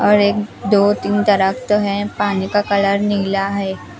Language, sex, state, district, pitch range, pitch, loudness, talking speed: Hindi, female, Himachal Pradesh, Shimla, 195-205 Hz, 205 Hz, -17 LUFS, 180 wpm